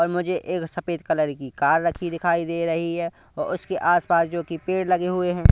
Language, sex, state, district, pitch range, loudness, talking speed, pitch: Hindi, male, Punjab, Kapurthala, 165-180 Hz, -24 LUFS, 220 wpm, 170 Hz